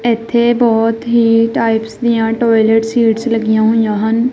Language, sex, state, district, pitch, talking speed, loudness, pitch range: Punjabi, female, Punjab, Kapurthala, 225 Hz, 140 wpm, -13 LUFS, 225-235 Hz